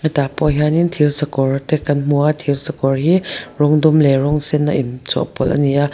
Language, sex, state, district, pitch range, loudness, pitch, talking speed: Mizo, female, Mizoram, Aizawl, 140-155 Hz, -16 LUFS, 150 Hz, 230 wpm